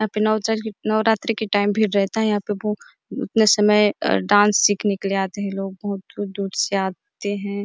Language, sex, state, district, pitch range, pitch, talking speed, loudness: Hindi, female, Chhattisgarh, Bastar, 200-215 Hz, 205 Hz, 205 wpm, -20 LUFS